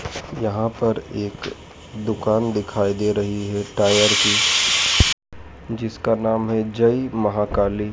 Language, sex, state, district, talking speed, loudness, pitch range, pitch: Hindi, male, Madhya Pradesh, Dhar, 115 wpm, -19 LUFS, 100-110 Hz, 105 Hz